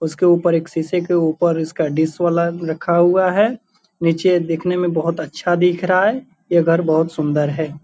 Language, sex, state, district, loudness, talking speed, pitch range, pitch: Hindi, male, Bihar, Purnia, -17 LUFS, 190 wpm, 160-180 Hz, 170 Hz